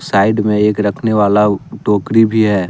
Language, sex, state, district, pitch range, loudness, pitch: Hindi, male, Jharkhand, Deoghar, 100-110 Hz, -13 LUFS, 105 Hz